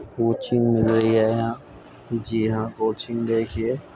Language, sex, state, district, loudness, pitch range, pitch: Hindi, male, Uttar Pradesh, Muzaffarnagar, -23 LUFS, 110-115 Hz, 115 Hz